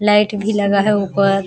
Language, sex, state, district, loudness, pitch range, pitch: Hindi, female, Bihar, Araria, -16 LUFS, 200-210 Hz, 205 Hz